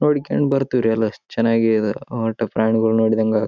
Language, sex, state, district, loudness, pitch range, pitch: Kannada, male, Karnataka, Raichur, -19 LUFS, 110-115 Hz, 110 Hz